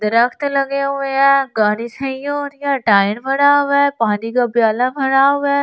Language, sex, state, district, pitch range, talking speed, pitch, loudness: Hindi, female, Delhi, New Delhi, 235-280 Hz, 200 wpm, 270 Hz, -16 LUFS